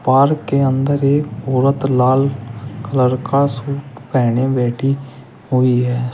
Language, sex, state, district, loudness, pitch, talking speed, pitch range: Hindi, male, Uttar Pradesh, Shamli, -17 LUFS, 130 Hz, 125 wpm, 125-140 Hz